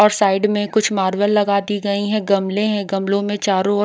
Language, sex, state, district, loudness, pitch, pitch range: Hindi, female, Odisha, Khordha, -18 LUFS, 205 Hz, 200-210 Hz